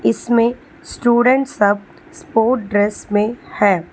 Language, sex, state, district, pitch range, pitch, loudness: Hindi, female, Telangana, Hyderabad, 205-260 Hz, 230 Hz, -17 LUFS